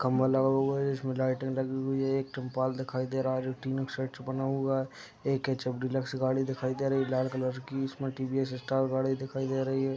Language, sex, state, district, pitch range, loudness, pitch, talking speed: Hindi, male, Uttar Pradesh, Deoria, 130-135 Hz, -31 LUFS, 130 Hz, 245 wpm